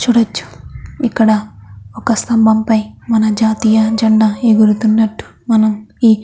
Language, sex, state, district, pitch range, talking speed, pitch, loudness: Telugu, female, Andhra Pradesh, Chittoor, 215-225 Hz, 115 wpm, 220 Hz, -13 LUFS